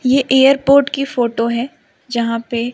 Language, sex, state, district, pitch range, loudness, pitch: Hindi, female, Madhya Pradesh, Umaria, 235-275 Hz, -15 LUFS, 255 Hz